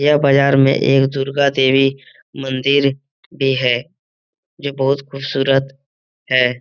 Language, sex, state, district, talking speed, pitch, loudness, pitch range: Hindi, male, Bihar, Lakhisarai, 125 wpm, 135 Hz, -16 LUFS, 135-140 Hz